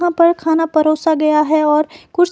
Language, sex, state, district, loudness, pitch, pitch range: Hindi, female, Himachal Pradesh, Shimla, -15 LUFS, 315 Hz, 310-335 Hz